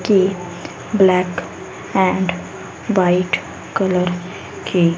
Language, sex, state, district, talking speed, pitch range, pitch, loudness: Hindi, female, Haryana, Rohtak, 70 wpm, 180-190 Hz, 185 Hz, -18 LUFS